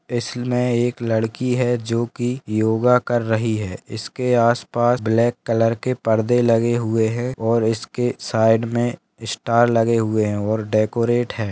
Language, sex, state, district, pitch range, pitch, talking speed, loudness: Hindi, male, Bihar, Bhagalpur, 110-120 Hz, 115 Hz, 155 wpm, -20 LUFS